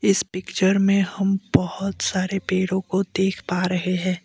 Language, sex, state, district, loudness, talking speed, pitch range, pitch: Hindi, male, Assam, Kamrup Metropolitan, -22 LUFS, 170 wpm, 185-195 Hz, 190 Hz